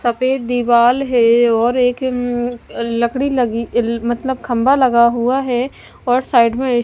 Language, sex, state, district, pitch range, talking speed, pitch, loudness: Hindi, female, Maharashtra, Mumbai Suburban, 235-255 Hz, 150 wpm, 245 Hz, -16 LUFS